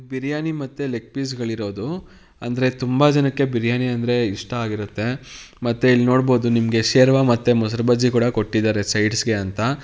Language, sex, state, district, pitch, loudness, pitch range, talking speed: Kannada, male, Karnataka, Mysore, 120 Hz, -20 LUFS, 115-130 Hz, 145 wpm